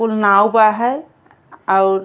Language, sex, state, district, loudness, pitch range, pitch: Bhojpuri, female, Uttar Pradesh, Gorakhpur, -14 LUFS, 200-230 Hz, 215 Hz